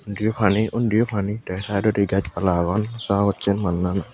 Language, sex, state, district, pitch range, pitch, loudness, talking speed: Chakma, male, Tripura, Unakoti, 95-110 Hz, 100 Hz, -22 LUFS, 160 wpm